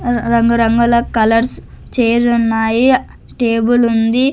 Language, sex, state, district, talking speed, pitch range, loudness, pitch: Telugu, female, Andhra Pradesh, Sri Satya Sai, 110 wpm, 230-240 Hz, -13 LUFS, 235 Hz